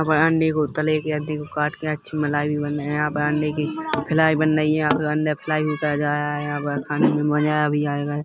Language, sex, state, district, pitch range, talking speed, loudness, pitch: Hindi, male, Chhattisgarh, Rajnandgaon, 150-155 Hz, 245 wpm, -22 LUFS, 150 Hz